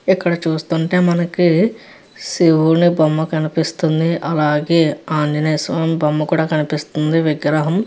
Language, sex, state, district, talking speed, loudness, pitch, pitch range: Telugu, female, Andhra Pradesh, Chittoor, 100 wpm, -16 LUFS, 160 Hz, 155-170 Hz